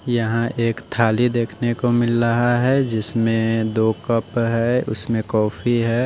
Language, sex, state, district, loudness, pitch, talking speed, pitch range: Hindi, male, Odisha, Nuapada, -19 LUFS, 115 Hz, 150 wpm, 115-120 Hz